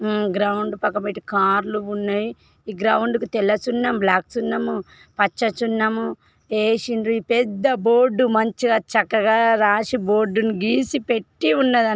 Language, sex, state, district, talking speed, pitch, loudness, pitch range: Telugu, female, Telangana, Karimnagar, 135 wpm, 220 Hz, -20 LUFS, 205-235 Hz